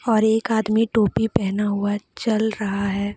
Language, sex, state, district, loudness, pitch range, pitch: Hindi, female, Jharkhand, Deoghar, -21 LUFS, 205-220 Hz, 215 Hz